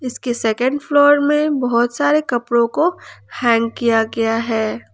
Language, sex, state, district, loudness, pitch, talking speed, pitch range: Hindi, female, Jharkhand, Ranchi, -17 LUFS, 240 Hz, 145 wpm, 230-285 Hz